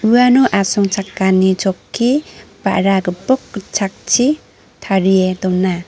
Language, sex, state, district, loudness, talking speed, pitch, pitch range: Garo, female, Meghalaya, North Garo Hills, -15 LUFS, 80 wpm, 195 Hz, 190-230 Hz